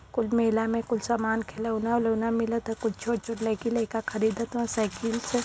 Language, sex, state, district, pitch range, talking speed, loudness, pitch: Bhojpuri, female, Uttar Pradesh, Varanasi, 225-235 Hz, 210 wpm, -28 LUFS, 230 Hz